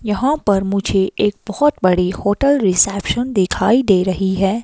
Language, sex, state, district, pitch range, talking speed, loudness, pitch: Hindi, female, Himachal Pradesh, Shimla, 190-235 Hz, 155 wpm, -16 LUFS, 200 Hz